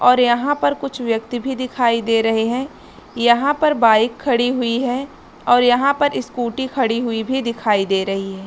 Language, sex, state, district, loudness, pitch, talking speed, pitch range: Hindi, female, Chhattisgarh, Korba, -18 LUFS, 245 Hz, 190 wpm, 230-260 Hz